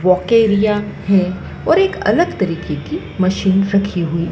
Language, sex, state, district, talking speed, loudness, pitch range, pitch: Hindi, female, Madhya Pradesh, Dhar, 140 wpm, -16 LUFS, 185-210 Hz, 195 Hz